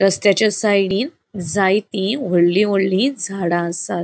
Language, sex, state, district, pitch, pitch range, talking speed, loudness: Konkani, female, Goa, North and South Goa, 195 Hz, 185-210 Hz, 105 wpm, -18 LUFS